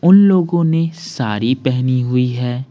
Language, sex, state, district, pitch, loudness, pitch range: Hindi, male, Bihar, Patna, 130 Hz, -16 LUFS, 125-170 Hz